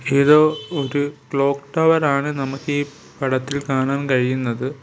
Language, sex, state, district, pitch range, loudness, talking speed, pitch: Malayalam, male, Kerala, Kollam, 135-145 Hz, -19 LUFS, 125 wpm, 140 Hz